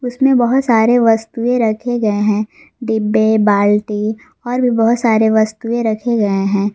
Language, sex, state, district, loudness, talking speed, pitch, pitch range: Hindi, female, Jharkhand, Garhwa, -14 LUFS, 150 wpm, 225 Hz, 215-240 Hz